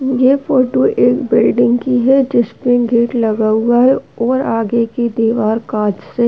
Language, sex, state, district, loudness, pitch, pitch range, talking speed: Hindi, female, Uttar Pradesh, Hamirpur, -14 LUFS, 240 Hz, 225-255 Hz, 170 wpm